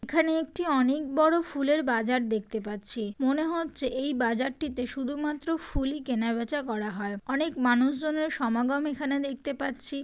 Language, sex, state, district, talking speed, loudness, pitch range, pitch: Bengali, female, West Bengal, Jalpaiguri, 145 wpm, -28 LUFS, 240-300 Hz, 275 Hz